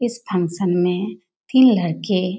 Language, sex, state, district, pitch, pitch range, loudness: Hindi, female, Bihar, Jamui, 185 Hz, 180-210 Hz, -19 LUFS